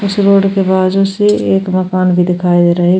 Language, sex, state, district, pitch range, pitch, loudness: Hindi, female, Goa, North and South Goa, 180-195 Hz, 190 Hz, -12 LUFS